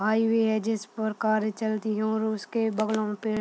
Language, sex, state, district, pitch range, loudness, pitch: Hindi, female, Bihar, Purnia, 215-220 Hz, -27 LUFS, 220 Hz